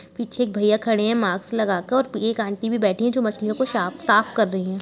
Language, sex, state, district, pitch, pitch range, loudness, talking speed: Hindi, female, Uttar Pradesh, Jalaun, 215 Hz, 200-235 Hz, -22 LUFS, 275 wpm